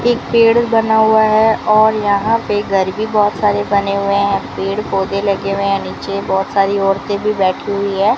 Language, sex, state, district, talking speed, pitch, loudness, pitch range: Hindi, female, Rajasthan, Bikaner, 200 wpm, 200 Hz, -15 LUFS, 195-220 Hz